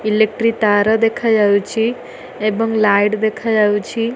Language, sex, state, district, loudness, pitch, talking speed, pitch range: Odia, female, Odisha, Nuapada, -16 LUFS, 220 Hz, 85 wpm, 210-225 Hz